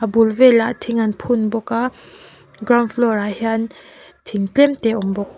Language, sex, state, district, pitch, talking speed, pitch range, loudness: Mizo, female, Mizoram, Aizawl, 225 Hz, 190 wpm, 220-240 Hz, -17 LUFS